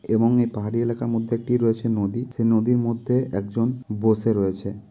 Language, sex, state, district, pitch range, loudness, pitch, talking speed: Bengali, male, West Bengal, Kolkata, 105-120 Hz, -23 LUFS, 115 Hz, 170 wpm